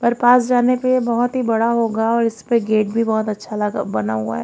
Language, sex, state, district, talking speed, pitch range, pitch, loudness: Hindi, female, Haryana, Jhajjar, 255 wpm, 215-240 Hz, 230 Hz, -18 LUFS